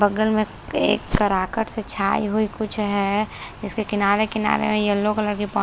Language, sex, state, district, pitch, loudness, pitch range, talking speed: Hindi, female, Maharashtra, Chandrapur, 210 Hz, -22 LUFS, 205-215 Hz, 180 wpm